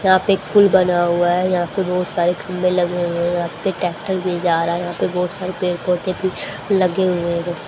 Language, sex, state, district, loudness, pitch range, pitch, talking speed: Hindi, female, Haryana, Charkhi Dadri, -19 LUFS, 175-185 Hz, 180 Hz, 250 wpm